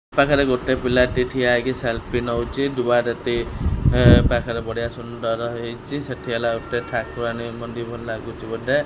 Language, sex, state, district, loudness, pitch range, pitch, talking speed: Odia, male, Odisha, Khordha, -22 LUFS, 115-125 Hz, 120 Hz, 140 wpm